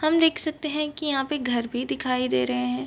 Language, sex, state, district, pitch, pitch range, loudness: Hindi, female, Bihar, Bhagalpur, 270 Hz, 240-305 Hz, -25 LUFS